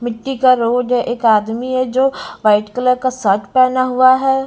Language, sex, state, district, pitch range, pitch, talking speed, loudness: Hindi, female, Bihar, Patna, 230-255 Hz, 250 Hz, 200 wpm, -15 LUFS